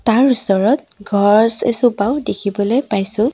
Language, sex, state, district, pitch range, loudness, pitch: Assamese, female, Assam, Sonitpur, 200-250 Hz, -15 LUFS, 225 Hz